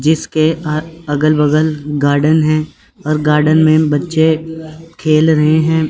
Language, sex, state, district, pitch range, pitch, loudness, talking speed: Hindi, male, Chandigarh, Chandigarh, 150-160 Hz, 155 Hz, -13 LUFS, 120 wpm